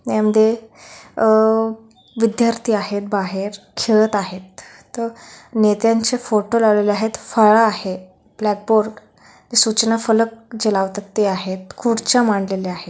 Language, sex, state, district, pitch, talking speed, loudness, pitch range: Marathi, female, Maharashtra, Pune, 220 Hz, 105 wpm, -18 LUFS, 205-225 Hz